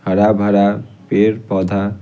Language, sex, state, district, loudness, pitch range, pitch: Hindi, male, Bihar, Patna, -15 LUFS, 100-105 Hz, 100 Hz